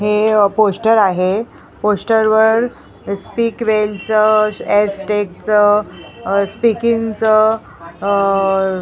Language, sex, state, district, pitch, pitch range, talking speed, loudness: Marathi, female, Maharashtra, Mumbai Suburban, 210 Hz, 200-220 Hz, 75 wpm, -15 LUFS